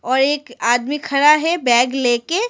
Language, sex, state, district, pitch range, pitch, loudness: Hindi, female, Arunachal Pradesh, Lower Dibang Valley, 245-300 Hz, 270 Hz, -16 LUFS